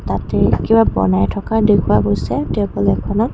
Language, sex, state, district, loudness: Assamese, female, Assam, Kamrup Metropolitan, -16 LUFS